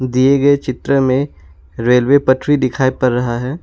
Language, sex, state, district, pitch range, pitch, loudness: Hindi, male, Assam, Sonitpur, 125-140 Hz, 130 Hz, -14 LUFS